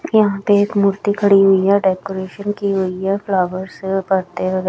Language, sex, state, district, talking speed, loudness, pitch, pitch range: Hindi, female, Chhattisgarh, Raipur, 190 wpm, -17 LUFS, 195 Hz, 190-205 Hz